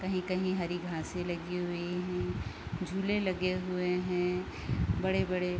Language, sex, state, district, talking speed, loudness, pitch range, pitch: Hindi, female, Bihar, East Champaran, 120 wpm, -33 LUFS, 175-185 Hz, 180 Hz